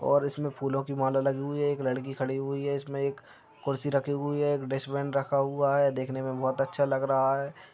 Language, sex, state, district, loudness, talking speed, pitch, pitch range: Hindi, male, Uttar Pradesh, Deoria, -29 LUFS, 240 wpm, 140 Hz, 135-140 Hz